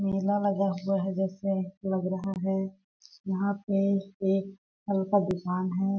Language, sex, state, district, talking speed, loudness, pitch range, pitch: Hindi, female, Chhattisgarh, Balrampur, 150 wpm, -29 LUFS, 190-195 Hz, 195 Hz